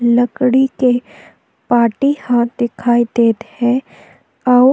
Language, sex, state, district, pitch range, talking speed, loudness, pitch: Chhattisgarhi, female, Chhattisgarh, Jashpur, 235-255 Hz, 100 wpm, -15 LUFS, 245 Hz